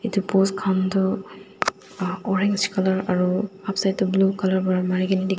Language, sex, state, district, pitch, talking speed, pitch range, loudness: Nagamese, female, Nagaland, Dimapur, 190 Hz, 165 wpm, 185-195 Hz, -22 LUFS